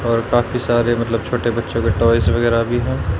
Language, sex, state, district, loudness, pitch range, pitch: Hindi, male, Haryana, Rohtak, -17 LUFS, 115-120 Hz, 115 Hz